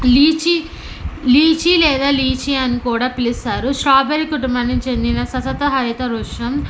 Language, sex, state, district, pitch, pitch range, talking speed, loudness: Telugu, female, Andhra Pradesh, Anantapur, 265 Hz, 250-295 Hz, 115 wpm, -16 LUFS